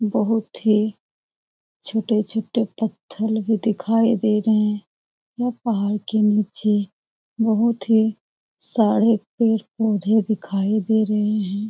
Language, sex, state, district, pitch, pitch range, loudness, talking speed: Hindi, female, Bihar, Jamui, 215 Hz, 210-225 Hz, -21 LUFS, 110 wpm